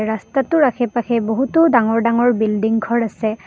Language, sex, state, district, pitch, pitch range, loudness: Assamese, female, Assam, Kamrup Metropolitan, 235 Hz, 220-245 Hz, -17 LUFS